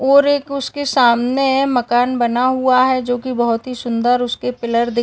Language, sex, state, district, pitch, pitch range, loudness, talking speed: Hindi, female, Uttar Pradesh, Gorakhpur, 250 Hz, 240-265 Hz, -16 LUFS, 190 wpm